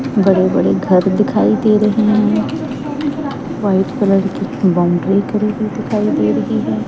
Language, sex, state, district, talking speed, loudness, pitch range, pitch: Hindi, female, Chandigarh, Chandigarh, 150 wpm, -15 LUFS, 190-215 Hz, 205 Hz